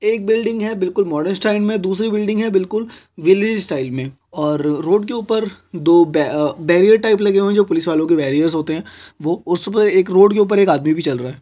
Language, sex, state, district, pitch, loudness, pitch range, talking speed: Hindi, male, Chhattisgarh, Korba, 190 Hz, -16 LUFS, 160-210 Hz, 235 wpm